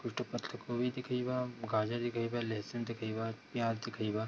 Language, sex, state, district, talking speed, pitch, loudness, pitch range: Hindi, male, Bihar, Darbhanga, 140 wpm, 120 Hz, -37 LUFS, 110-120 Hz